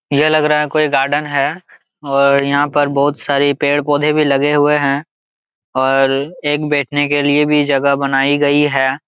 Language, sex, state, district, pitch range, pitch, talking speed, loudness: Hindi, male, Jharkhand, Jamtara, 140-150 Hz, 145 Hz, 185 wpm, -14 LUFS